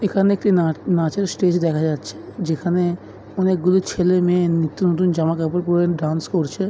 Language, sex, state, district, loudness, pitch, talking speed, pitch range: Bengali, male, West Bengal, Jhargram, -19 LUFS, 175 Hz, 160 wpm, 160-185 Hz